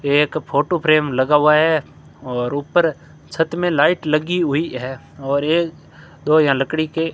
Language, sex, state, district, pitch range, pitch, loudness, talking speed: Hindi, male, Rajasthan, Bikaner, 140-160 Hz, 150 Hz, -18 LUFS, 185 wpm